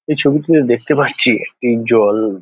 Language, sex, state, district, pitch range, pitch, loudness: Bengali, male, West Bengal, Jhargram, 115-150 Hz, 125 Hz, -14 LUFS